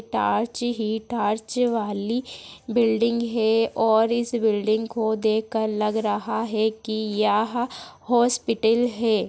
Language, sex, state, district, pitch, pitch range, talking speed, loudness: Hindi, female, Chhattisgarh, Jashpur, 225 Hz, 220-235 Hz, 125 wpm, -23 LUFS